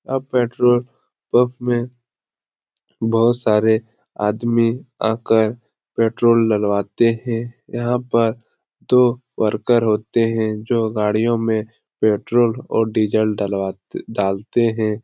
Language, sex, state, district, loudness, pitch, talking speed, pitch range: Hindi, male, Bihar, Lakhisarai, -19 LUFS, 115 Hz, 105 wpm, 110-120 Hz